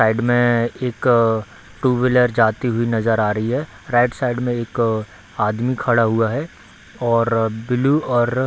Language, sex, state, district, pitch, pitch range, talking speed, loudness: Hindi, male, Bihar, Darbhanga, 120 Hz, 110-125 Hz, 165 wpm, -19 LUFS